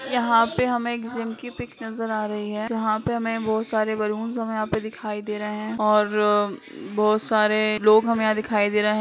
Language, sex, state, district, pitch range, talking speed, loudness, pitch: Hindi, female, Bihar, Bhagalpur, 210-225 Hz, 225 wpm, -23 LUFS, 215 Hz